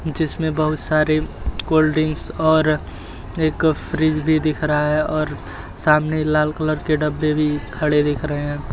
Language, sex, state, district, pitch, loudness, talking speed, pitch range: Hindi, male, Uttar Pradesh, Jyotiba Phule Nagar, 155 Hz, -19 LUFS, 160 wpm, 150-155 Hz